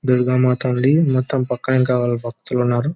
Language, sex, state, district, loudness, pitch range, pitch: Telugu, male, Telangana, Nalgonda, -18 LUFS, 125-130 Hz, 125 Hz